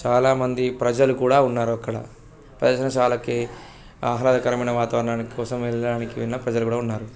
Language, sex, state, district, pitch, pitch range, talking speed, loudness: Telugu, male, Andhra Pradesh, Guntur, 120 Hz, 115-125 Hz, 115 wpm, -22 LUFS